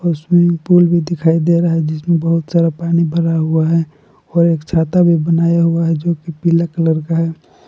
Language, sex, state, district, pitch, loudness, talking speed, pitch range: Hindi, male, Jharkhand, Palamu, 165 Hz, -14 LUFS, 210 wpm, 165-170 Hz